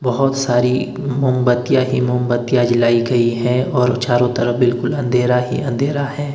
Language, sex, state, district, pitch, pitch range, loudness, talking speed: Hindi, male, Himachal Pradesh, Shimla, 125 Hz, 120-130 Hz, -16 LUFS, 150 wpm